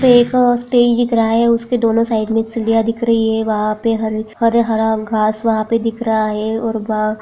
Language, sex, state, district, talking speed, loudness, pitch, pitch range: Hindi, female, Bihar, Darbhanga, 210 wpm, -16 LUFS, 225 Hz, 220-235 Hz